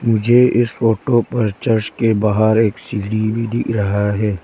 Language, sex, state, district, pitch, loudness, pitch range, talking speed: Hindi, female, Arunachal Pradesh, Lower Dibang Valley, 110 Hz, -16 LUFS, 105-120 Hz, 175 wpm